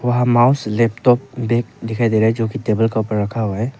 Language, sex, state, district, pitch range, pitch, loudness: Hindi, male, Arunachal Pradesh, Papum Pare, 110-120 Hz, 115 Hz, -17 LUFS